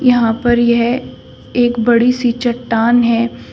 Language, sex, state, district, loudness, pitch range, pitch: Hindi, female, Uttar Pradesh, Shamli, -14 LUFS, 235-245 Hz, 240 Hz